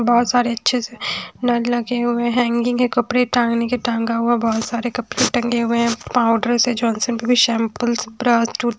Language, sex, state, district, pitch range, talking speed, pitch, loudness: Hindi, female, Haryana, Charkhi Dadri, 235-245 Hz, 185 wpm, 240 Hz, -18 LUFS